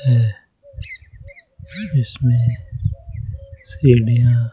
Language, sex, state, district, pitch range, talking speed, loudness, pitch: Hindi, male, Rajasthan, Jaipur, 110-125 Hz, 40 wpm, -17 LUFS, 115 Hz